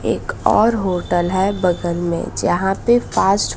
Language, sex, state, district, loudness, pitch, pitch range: Hindi, female, Bihar, West Champaran, -18 LUFS, 190 Hz, 175-205 Hz